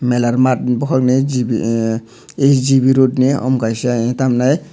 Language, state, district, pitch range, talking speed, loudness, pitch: Kokborok, Tripura, Dhalai, 120-130 Hz, 180 wpm, -15 LUFS, 130 Hz